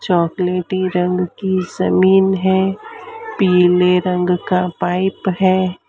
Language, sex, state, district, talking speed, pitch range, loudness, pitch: Hindi, female, Maharashtra, Mumbai Suburban, 100 wpm, 180-190 Hz, -16 LUFS, 185 Hz